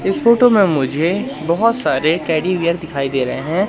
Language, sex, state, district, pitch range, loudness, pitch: Hindi, male, Madhya Pradesh, Katni, 145-205 Hz, -16 LUFS, 170 Hz